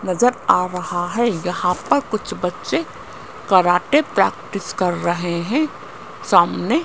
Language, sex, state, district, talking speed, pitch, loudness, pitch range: Hindi, female, Rajasthan, Jaipur, 130 wpm, 185 Hz, -19 LUFS, 180-240 Hz